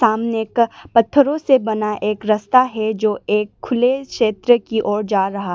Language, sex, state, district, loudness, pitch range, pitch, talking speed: Hindi, female, Arunachal Pradesh, Lower Dibang Valley, -18 LUFS, 210-240 Hz, 220 Hz, 185 wpm